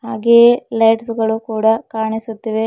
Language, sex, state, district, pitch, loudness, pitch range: Kannada, female, Karnataka, Bidar, 225 Hz, -15 LUFS, 220-230 Hz